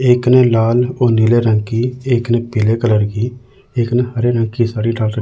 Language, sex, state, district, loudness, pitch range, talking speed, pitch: Hindi, male, Chandigarh, Chandigarh, -15 LUFS, 115-125 Hz, 230 wpm, 120 Hz